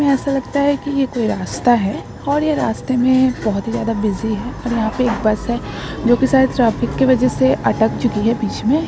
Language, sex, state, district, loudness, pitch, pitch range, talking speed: Hindi, female, West Bengal, North 24 Parganas, -17 LUFS, 245 Hz, 225-265 Hz, 235 wpm